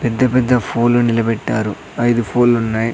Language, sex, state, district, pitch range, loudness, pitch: Telugu, male, Andhra Pradesh, Sri Satya Sai, 115-120 Hz, -16 LUFS, 120 Hz